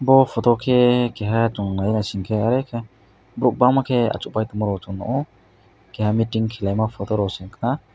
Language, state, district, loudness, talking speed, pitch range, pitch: Kokborok, Tripura, West Tripura, -21 LUFS, 160 wpm, 100-125 Hz, 110 Hz